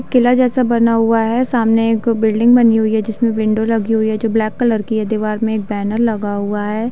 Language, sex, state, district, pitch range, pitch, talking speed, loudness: Hindi, female, Chhattisgarh, Bilaspur, 215-235 Hz, 225 Hz, 240 wpm, -15 LUFS